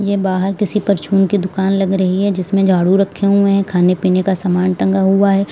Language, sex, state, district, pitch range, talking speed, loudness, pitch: Hindi, female, Uttar Pradesh, Lalitpur, 185-200 Hz, 230 wpm, -15 LUFS, 195 Hz